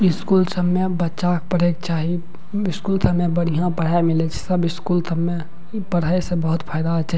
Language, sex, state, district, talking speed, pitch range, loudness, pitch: Maithili, male, Bihar, Madhepura, 225 wpm, 165-180 Hz, -21 LUFS, 175 Hz